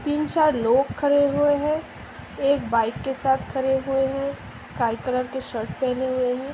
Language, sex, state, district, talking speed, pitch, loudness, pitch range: Hindi, female, Uttar Pradesh, Budaun, 200 wpm, 265 Hz, -23 LUFS, 250-285 Hz